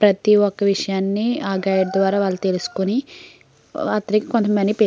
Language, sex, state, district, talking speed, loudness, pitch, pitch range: Telugu, female, Andhra Pradesh, Srikakulam, 150 wpm, -19 LUFS, 200 Hz, 195-215 Hz